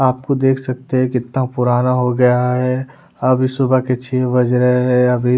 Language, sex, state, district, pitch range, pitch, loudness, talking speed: Hindi, female, Bihar, West Champaran, 125-130 Hz, 125 Hz, -16 LUFS, 200 wpm